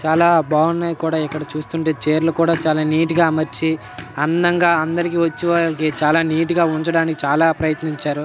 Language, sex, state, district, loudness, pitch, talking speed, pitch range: Telugu, male, Telangana, Nalgonda, -18 LUFS, 160 Hz, 145 wpm, 155-165 Hz